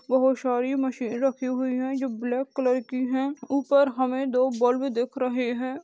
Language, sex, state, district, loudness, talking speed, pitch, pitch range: Hindi, female, Goa, North and South Goa, -25 LUFS, 185 wpm, 260 Hz, 250-270 Hz